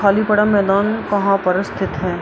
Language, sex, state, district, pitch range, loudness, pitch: Hindi, female, Bihar, Araria, 195-210 Hz, -17 LUFS, 200 Hz